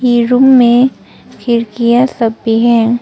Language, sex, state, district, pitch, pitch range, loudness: Hindi, female, Arunachal Pradesh, Papum Pare, 235 Hz, 235-245 Hz, -10 LUFS